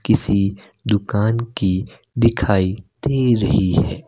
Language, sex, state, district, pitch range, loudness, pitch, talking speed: Hindi, male, Himachal Pradesh, Shimla, 100-115 Hz, -19 LUFS, 105 Hz, 105 wpm